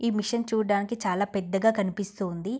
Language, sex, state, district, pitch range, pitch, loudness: Telugu, female, Andhra Pradesh, Guntur, 195-225 Hz, 205 Hz, -27 LUFS